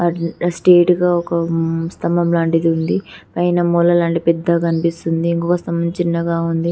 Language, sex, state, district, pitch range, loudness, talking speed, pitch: Telugu, female, Telangana, Karimnagar, 165-175 Hz, -17 LUFS, 145 wpm, 170 Hz